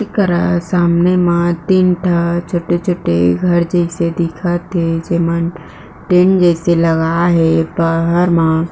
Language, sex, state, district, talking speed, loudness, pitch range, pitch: Chhattisgarhi, female, Chhattisgarh, Jashpur, 135 wpm, -14 LUFS, 165-175 Hz, 170 Hz